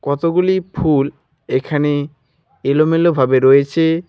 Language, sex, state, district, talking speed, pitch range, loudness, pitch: Bengali, male, West Bengal, Alipurduar, 90 wpm, 140-165 Hz, -15 LUFS, 150 Hz